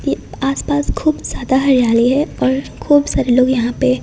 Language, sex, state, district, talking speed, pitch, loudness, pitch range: Hindi, female, Gujarat, Gandhinagar, 180 wpm, 265 Hz, -15 LUFS, 255-285 Hz